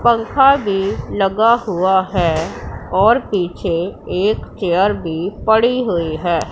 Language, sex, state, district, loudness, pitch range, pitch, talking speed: Hindi, female, Punjab, Pathankot, -16 LUFS, 175-225 Hz, 195 Hz, 120 wpm